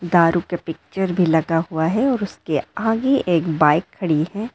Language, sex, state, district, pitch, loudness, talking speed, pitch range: Hindi, female, Arunachal Pradesh, Lower Dibang Valley, 175 Hz, -20 LUFS, 185 wpm, 160-205 Hz